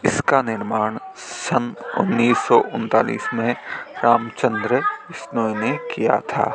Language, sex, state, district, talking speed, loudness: Hindi, male, Rajasthan, Bikaner, 110 wpm, -20 LUFS